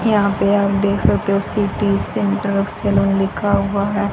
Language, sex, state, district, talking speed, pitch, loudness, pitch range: Hindi, female, Haryana, Charkhi Dadri, 160 wpm, 200 Hz, -18 LUFS, 200-205 Hz